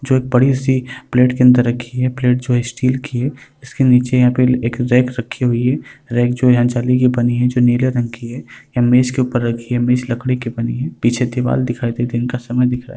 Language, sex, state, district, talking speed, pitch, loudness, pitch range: Hindi, male, Uttar Pradesh, Varanasi, 265 wpm, 125 Hz, -16 LUFS, 120-125 Hz